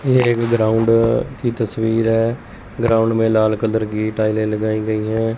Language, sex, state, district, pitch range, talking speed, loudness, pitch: Hindi, male, Chandigarh, Chandigarh, 110-115 Hz, 165 wpm, -18 LUFS, 115 Hz